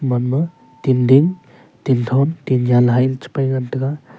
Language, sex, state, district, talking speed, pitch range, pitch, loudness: Wancho, male, Arunachal Pradesh, Longding, 100 wpm, 125-135 Hz, 130 Hz, -17 LUFS